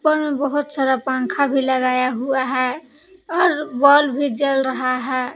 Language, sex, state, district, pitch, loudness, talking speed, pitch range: Hindi, female, Jharkhand, Palamu, 270 Hz, -19 LUFS, 155 wpm, 255-290 Hz